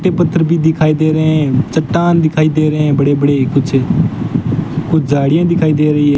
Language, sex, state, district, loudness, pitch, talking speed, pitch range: Hindi, male, Rajasthan, Bikaner, -13 LUFS, 155 Hz, 205 wpm, 145-160 Hz